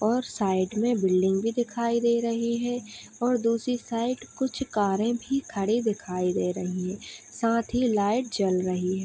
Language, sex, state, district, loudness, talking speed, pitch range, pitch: Hindi, female, Uttar Pradesh, Hamirpur, -27 LUFS, 170 wpm, 195-240 Hz, 230 Hz